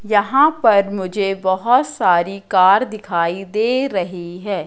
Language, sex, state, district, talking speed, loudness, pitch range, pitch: Hindi, female, Madhya Pradesh, Katni, 130 wpm, -17 LUFS, 185-225 Hz, 200 Hz